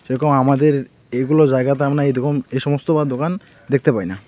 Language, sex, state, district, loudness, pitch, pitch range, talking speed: Bengali, male, West Bengal, Alipurduar, -18 LUFS, 140 Hz, 130-150 Hz, 170 wpm